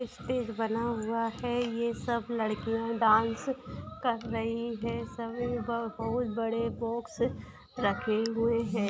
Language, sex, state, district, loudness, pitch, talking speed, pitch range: Hindi, female, Bihar, Saran, -31 LUFS, 230 Hz, 120 wpm, 225-235 Hz